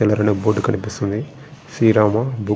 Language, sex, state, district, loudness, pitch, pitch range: Telugu, male, Andhra Pradesh, Srikakulam, -18 LUFS, 110 Hz, 105-130 Hz